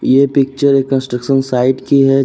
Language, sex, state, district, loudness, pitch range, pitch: Hindi, male, Uttar Pradesh, Jyotiba Phule Nagar, -13 LUFS, 130-140 Hz, 135 Hz